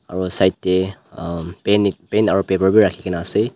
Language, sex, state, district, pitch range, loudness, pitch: Nagamese, male, Nagaland, Dimapur, 90-95 Hz, -18 LUFS, 95 Hz